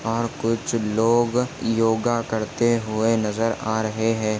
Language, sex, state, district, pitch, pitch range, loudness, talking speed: Hindi, male, Maharashtra, Dhule, 115 Hz, 110-115 Hz, -22 LUFS, 135 wpm